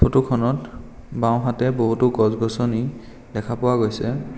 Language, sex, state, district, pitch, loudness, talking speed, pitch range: Assamese, male, Assam, Kamrup Metropolitan, 120 Hz, -21 LUFS, 125 wpm, 115-125 Hz